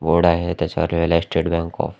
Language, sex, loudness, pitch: Marathi, male, -20 LUFS, 85 Hz